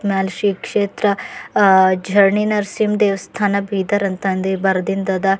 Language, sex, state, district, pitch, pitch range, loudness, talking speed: Kannada, female, Karnataka, Bidar, 200 Hz, 190-205 Hz, -17 LUFS, 120 wpm